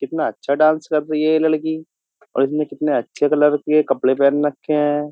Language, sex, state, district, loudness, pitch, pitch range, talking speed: Hindi, male, Uttar Pradesh, Jyotiba Phule Nagar, -18 LUFS, 150 Hz, 145-155 Hz, 210 wpm